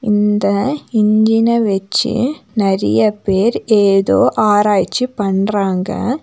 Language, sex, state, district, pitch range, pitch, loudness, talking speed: Tamil, female, Tamil Nadu, Nilgiris, 195-225 Hz, 210 Hz, -14 LUFS, 75 wpm